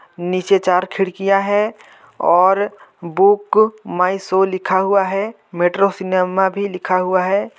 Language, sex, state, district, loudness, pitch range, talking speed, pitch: Hindi, male, Chhattisgarh, Jashpur, -17 LUFS, 185-200 Hz, 140 wpm, 190 Hz